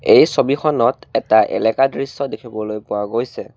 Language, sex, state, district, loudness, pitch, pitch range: Assamese, male, Assam, Kamrup Metropolitan, -17 LUFS, 130 Hz, 110-140 Hz